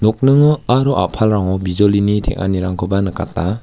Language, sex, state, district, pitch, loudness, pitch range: Garo, male, Meghalaya, West Garo Hills, 105 Hz, -15 LUFS, 95-125 Hz